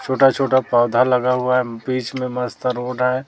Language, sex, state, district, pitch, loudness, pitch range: Hindi, male, Chhattisgarh, Raipur, 125 Hz, -19 LUFS, 125-130 Hz